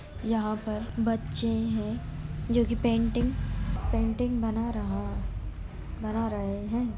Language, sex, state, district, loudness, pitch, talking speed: Hindi, female, Uttar Pradesh, Jalaun, -30 LUFS, 215 Hz, 120 wpm